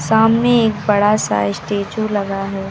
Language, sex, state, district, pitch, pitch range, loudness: Hindi, female, Uttar Pradesh, Lucknow, 205 Hz, 195-220 Hz, -16 LUFS